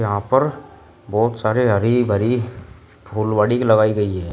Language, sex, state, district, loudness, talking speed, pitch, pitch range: Hindi, male, Uttar Pradesh, Shamli, -18 LUFS, 140 wpm, 110 Hz, 100-120 Hz